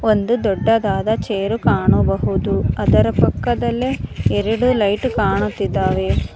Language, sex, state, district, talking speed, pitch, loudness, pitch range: Kannada, female, Karnataka, Bangalore, 85 wpm, 215 Hz, -18 LUFS, 205-225 Hz